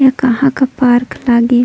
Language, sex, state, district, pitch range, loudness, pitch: Surgujia, female, Chhattisgarh, Sarguja, 245-265 Hz, -12 LUFS, 250 Hz